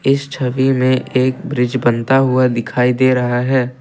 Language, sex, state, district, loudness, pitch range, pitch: Hindi, male, Assam, Kamrup Metropolitan, -15 LUFS, 125-130 Hz, 130 Hz